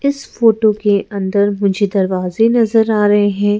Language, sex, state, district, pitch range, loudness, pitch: Hindi, female, Madhya Pradesh, Bhopal, 200-220 Hz, -14 LUFS, 205 Hz